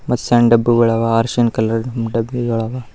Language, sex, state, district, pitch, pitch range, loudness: Kannada, male, Karnataka, Bidar, 115 Hz, 115-120 Hz, -16 LUFS